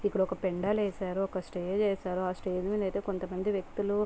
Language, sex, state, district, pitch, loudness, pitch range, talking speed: Telugu, female, Andhra Pradesh, Guntur, 190 Hz, -32 LUFS, 185-205 Hz, 205 wpm